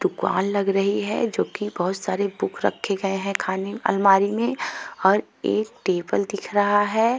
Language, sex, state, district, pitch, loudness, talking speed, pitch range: Hindi, female, Uttar Pradesh, Jalaun, 200 Hz, -23 LUFS, 175 wpm, 195-210 Hz